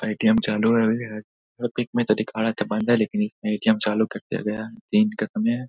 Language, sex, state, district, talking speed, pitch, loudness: Hindi, male, Bihar, Saharsa, 255 wpm, 115 Hz, -23 LUFS